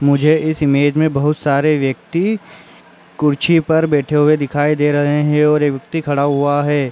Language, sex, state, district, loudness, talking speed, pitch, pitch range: Hindi, male, Uttar Pradesh, Jalaun, -15 LUFS, 180 wpm, 150 Hz, 145-155 Hz